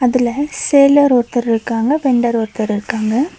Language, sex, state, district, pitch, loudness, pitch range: Tamil, female, Tamil Nadu, Nilgiris, 240 Hz, -15 LUFS, 225-275 Hz